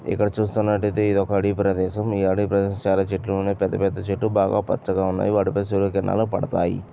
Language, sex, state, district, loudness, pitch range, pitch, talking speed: Telugu, male, Andhra Pradesh, Chittoor, -22 LUFS, 95-105 Hz, 100 Hz, 180 wpm